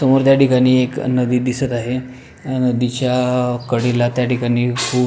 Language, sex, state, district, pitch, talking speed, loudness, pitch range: Marathi, male, Maharashtra, Pune, 125 Hz, 140 wpm, -17 LUFS, 125-130 Hz